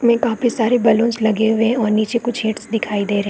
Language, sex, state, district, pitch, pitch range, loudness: Hindi, female, Chhattisgarh, Korba, 225 Hz, 220-235 Hz, -17 LUFS